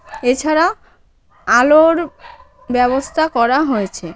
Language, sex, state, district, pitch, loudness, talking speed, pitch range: Bengali, female, West Bengal, Cooch Behar, 275 Hz, -15 LUFS, 70 wpm, 240-325 Hz